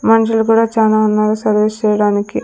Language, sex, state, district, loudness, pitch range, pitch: Telugu, female, Andhra Pradesh, Sri Satya Sai, -13 LUFS, 210-225 Hz, 215 Hz